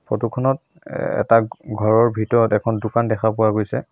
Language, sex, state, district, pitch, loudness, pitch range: Assamese, male, Assam, Sonitpur, 110 Hz, -19 LUFS, 110-115 Hz